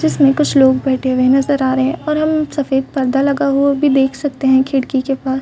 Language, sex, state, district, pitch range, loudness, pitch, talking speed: Hindi, female, Chhattisgarh, Raigarh, 265-285 Hz, -14 LUFS, 270 Hz, 245 wpm